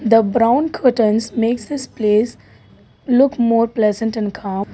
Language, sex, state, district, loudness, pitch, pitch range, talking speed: English, female, Karnataka, Bangalore, -17 LUFS, 230 Hz, 215-240 Hz, 140 wpm